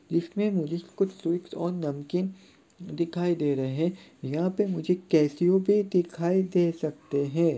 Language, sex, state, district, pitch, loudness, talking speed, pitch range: Hindi, male, Chhattisgarh, Sarguja, 175 Hz, -27 LUFS, 150 wpm, 160-185 Hz